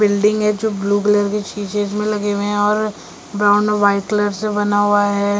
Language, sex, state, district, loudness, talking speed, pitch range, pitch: Hindi, female, Delhi, New Delhi, -17 LUFS, 210 wpm, 205-210 Hz, 205 Hz